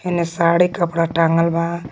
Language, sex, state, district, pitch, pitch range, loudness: Magahi, female, Jharkhand, Palamu, 170 Hz, 165-170 Hz, -17 LUFS